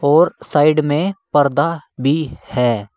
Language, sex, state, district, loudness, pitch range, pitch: Hindi, male, Uttar Pradesh, Saharanpur, -17 LUFS, 135-155 Hz, 145 Hz